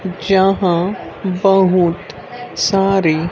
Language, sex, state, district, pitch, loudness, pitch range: Hindi, female, Haryana, Rohtak, 190 Hz, -15 LUFS, 175-195 Hz